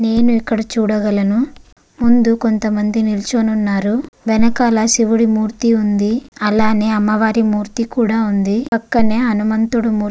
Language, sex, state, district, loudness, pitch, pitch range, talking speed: Telugu, female, Andhra Pradesh, Guntur, -15 LUFS, 220 Hz, 215-230 Hz, 120 wpm